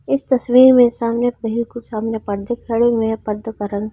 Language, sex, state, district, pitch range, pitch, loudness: Hindi, female, Delhi, New Delhi, 220-240 Hz, 230 Hz, -17 LUFS